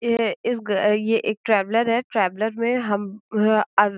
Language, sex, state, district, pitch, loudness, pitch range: Hindi, female, Uttar Pradesh, Gorakhpur, 215 Hz, -22 LUFS, 210-230 Hz